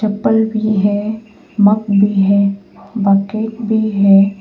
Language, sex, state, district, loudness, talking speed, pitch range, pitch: Hindi, female, Arunachal Pradesh, Papum Pare, -14 LUFS, 135 wpm, 200-220 Hz, 205 Hz